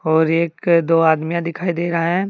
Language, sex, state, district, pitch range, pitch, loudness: Hindi, male, Jharkhand, Deoghar, 165-170 Hz, 170 Hz, -18 LUFS